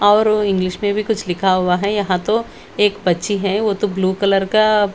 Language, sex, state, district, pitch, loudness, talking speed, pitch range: Hindi, female, Bihar, Patna, 205 Hz, -17 LUFS, 230 wpm, 185-210 Hz